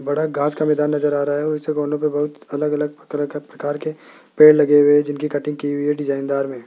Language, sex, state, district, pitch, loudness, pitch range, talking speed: Hindi, male, Rajasthan, Jaipur, 150 Hz, -19 LUFS, 145-150 Hz, 245 wpm